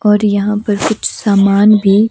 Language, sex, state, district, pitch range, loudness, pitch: Hindi, female, Himachal Pradesh, Shimla, 200-210 Hz, -12 LUFS, 210 Hz